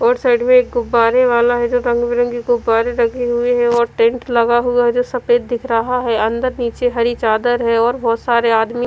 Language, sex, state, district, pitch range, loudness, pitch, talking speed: Hindi, female, Punjab, Fazilka, 235-245 Hz, -15 LUFS, 240 Hz, 225 wpm